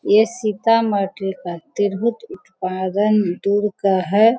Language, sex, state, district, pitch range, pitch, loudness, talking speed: Hindi, female, Bihar, Sitamarhi, 190-220 Hz, 205 Hz, -19 LUFS, 110 wpm